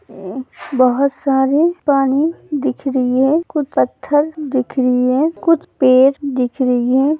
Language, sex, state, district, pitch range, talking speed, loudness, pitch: Hindi, female, Uttar Pradesh, Hamirpur, 255-300 Hz, 140 wpm, -16 LUFS, 275 Hz